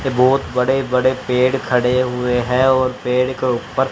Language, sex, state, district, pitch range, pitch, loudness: Hindi, male, Haryana, Charkhi Dadri, 125-130 Hz, 130 Hz, -17 LUFS